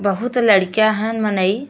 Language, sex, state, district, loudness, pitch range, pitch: Bhojpuri, female, Uttar Pradesh, Ghazipur, -17 LUFS, 195-225 Hz, 215 Hz